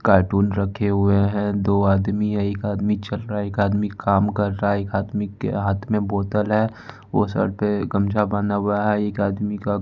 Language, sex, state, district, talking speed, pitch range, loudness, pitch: Hindi, male, Bihar, West Champaran, 215 wpm, 100-105 Hz, -22 LUFS, 100 Hz